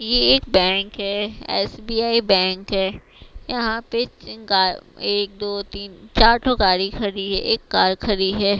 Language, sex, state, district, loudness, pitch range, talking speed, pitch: Hindi, female, Bihar, West Champaran, -20 LUFS, 190-225 Hz, 160 wpm, 200 Hz